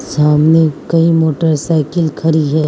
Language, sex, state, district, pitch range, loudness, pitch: Hindi, female, Mizoram, Aizawl, 150-165 Hz, -12 LUFS, 160 Hz